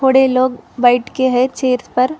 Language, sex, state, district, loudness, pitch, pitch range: Hindi, female, Telangana, Hyderabad, -15 LUFS, 255 Hz, 250-260 Hz